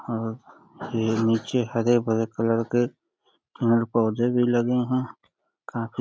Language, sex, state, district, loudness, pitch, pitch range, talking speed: Hindi, male, Uttar Pradesh, Deoria, -24 LUFS, 115 Hz, 115-120 Hz, 120 wpm